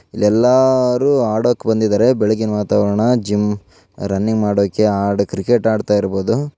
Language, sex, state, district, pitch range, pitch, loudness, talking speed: Kannada, male, Karnataka, Raichur, 105-120 Hz, 105 Hz, -16 LUFS, 110 wpm